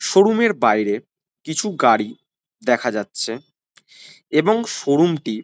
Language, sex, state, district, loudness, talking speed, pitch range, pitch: Bengali, male, West Bengal, Kolkata, -19 LUFS, 120 wpm, 140-210 Hz, 180 Hz